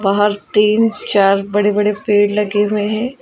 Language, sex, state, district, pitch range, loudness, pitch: Hindi, female, Uttar Pradesh, Shamli, 205-210 Hz, -15 LUFS, 205 Hz